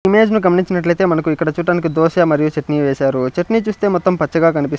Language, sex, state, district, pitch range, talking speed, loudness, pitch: Telugu, male, Andhra Pradesh, Sri Satya Sai, 150-185 Hz, 215 wpm, -15 LUFS, 165 Hz